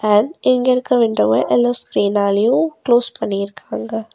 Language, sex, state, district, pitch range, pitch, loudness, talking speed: Tamil, female, Tamil Nadu, Nilgiris, 200-250 Hz, 225 Hz, -17 LUFS, 115 wpm